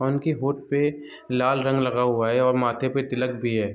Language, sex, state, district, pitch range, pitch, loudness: Hindi, male, Bihar, East Champaran, 125-135 Hz, 130 Hz, -24 LUFS